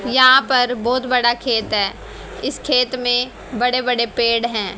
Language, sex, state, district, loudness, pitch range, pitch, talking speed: Hindi, female, Haryana, Rohtak, -17 LUFS, 235-255 Hz, 245 Hz, 165 wpm